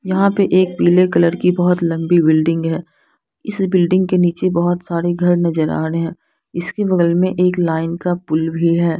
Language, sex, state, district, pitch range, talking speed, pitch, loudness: Hindi, female, Bihar, Patna, 165-180 Hz, 195 wpm, 175 Hz, -16 LUFS